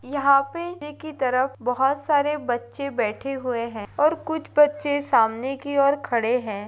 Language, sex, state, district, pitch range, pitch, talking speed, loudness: Hindi, female, Bihar, Madhepura, 245-295 Hz, 275 Hz, 170 wpm, -23 LUFS